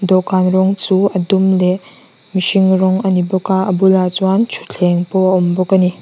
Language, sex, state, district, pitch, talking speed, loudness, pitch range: Mizo, female, Mizoram, Aizawl, 190 Hz, 220 wpm, -14 LUFS, 185-190 Hz